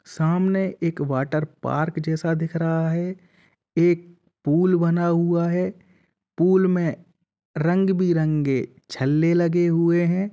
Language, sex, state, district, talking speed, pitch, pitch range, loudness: Hindi, male, Uttar Pradesh, Jalaun, 115 wpm, 170 Hz, 160-180 Hz, -22 LUFS